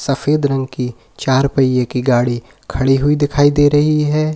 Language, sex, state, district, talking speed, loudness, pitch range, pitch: Hindi, male, Uttar Pradesh, Lalitpur, 180 wpm, -15 LUFS, 125-145 Hz, 135 Hz